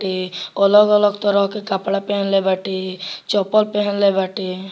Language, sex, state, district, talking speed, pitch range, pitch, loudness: Bhojpuri, male, Bihar, Muzaffarpur, 125 wpm, 190-205 Hz, 200 Hz, -18 LUFS